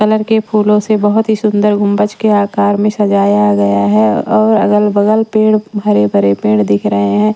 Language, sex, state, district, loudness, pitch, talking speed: Hindi, female, Maharashtra, Washim, -11 LUFS, 205 Hz, 190 wpm